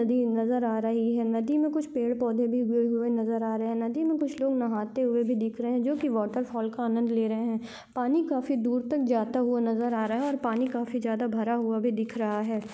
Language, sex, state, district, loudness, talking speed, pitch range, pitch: Hindi, female, Maharashtra, Dhule, -28 LUFS, 255 wpm, 225-250 Hz, 235 Hz